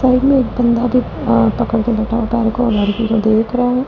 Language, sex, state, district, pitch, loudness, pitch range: Hindi, female, Delhi, New Delhi, 230 Hz, -15 LUFS, 220-245 Hz